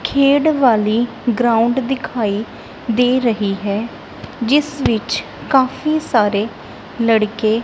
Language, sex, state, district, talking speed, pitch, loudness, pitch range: Punjabi, female, Punjab, Kapurthala, 100 wpm, 235 Hz, -17 LUFS, 220-260 Hz